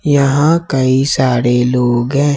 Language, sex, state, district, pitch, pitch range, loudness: Hindi, male, Jharkhand, Ranchi, 135 Hz, 125-145 Hz, -13 LUFS